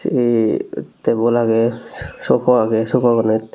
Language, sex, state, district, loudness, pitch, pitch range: Chakma, male, Tripura, Dhalai, -16 LUFS, 115 Hz, 110-120 Hz